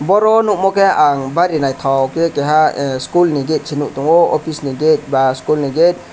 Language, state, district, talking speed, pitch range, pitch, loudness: Kokborok, Tripura, West Tripura, 195 wpm, 140-170 Hz, 150 Hz, -14 LUFS